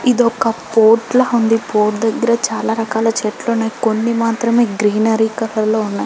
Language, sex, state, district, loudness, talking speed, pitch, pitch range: Telugu, female, Telangana, Karimnagar, -15 LUFS, 160 wpm, 225 Hz, 220-235 Hz